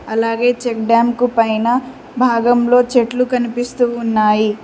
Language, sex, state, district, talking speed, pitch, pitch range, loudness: Telugu, female, Telangana, Mahabubabad, 115 wpm, 240 Hz, 230-245 Hz, -15 LUFS